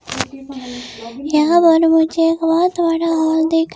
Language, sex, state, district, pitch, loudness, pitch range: Hindi, female, Himachal Pradesh, Shimla, 325 Hz, -15 LUFS, 275-330 Hz